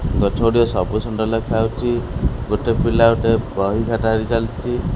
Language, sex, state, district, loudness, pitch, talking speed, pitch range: Odia, male, Odisha, Khordha, -19 LUFS, 115 Hz, 155 wpm, 110-115 Hz